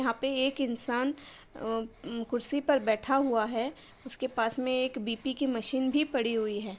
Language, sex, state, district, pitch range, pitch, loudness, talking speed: Hindi, female, Uttar Pradesh, Varanasi, 230-270 Hz, 255 Hz, -30 LUFS, 185 wpm